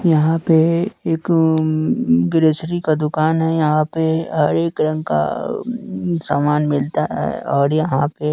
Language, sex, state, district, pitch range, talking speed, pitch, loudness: Hindi, male, Bihar, West Champaran, 150-165 Hz, 145 wpm, 155 Hz, -18 LUFS